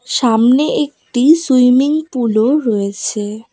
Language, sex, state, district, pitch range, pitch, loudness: Bengali, female, West Bengal, Cooch Behar, 225-275 Hz, 250 Hz, -14 LUFS